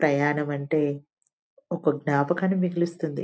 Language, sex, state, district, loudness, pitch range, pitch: Telugu, female, Telangana, Nalgonda, -25 LUFS, 145-175 Hz, 155 Hz